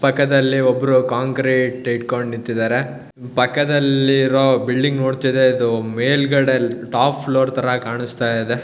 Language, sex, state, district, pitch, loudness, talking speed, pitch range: Kannada, male, Karnataka, Shimoga, 130 Hz, -17 LUFS, 95 wpm, 120-135 Hz